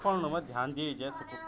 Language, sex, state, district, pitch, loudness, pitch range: Garhwali, male, Uttarakhand, Tehri Garhwal, 155 Hz, -34 LUFS, 135-200 Hz